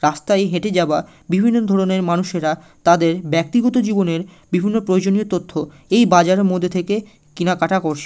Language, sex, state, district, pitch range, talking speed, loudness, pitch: Bengali, male, West Bengal, Malda, 165-195 Hz, 135 wpm, -18 LUFS, 180 Hz